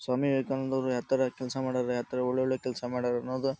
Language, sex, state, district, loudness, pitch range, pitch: Kannada, male, Karnataka, Dharwad, -30 LUFS, 125-135 Hz, 130 Hz